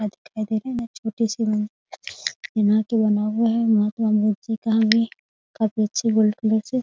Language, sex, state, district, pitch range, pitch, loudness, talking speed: Hindi, female, Bihar, Muzaffarpur, 215-230 Hz, 220 Hz, -22 LUFS, 165 wpm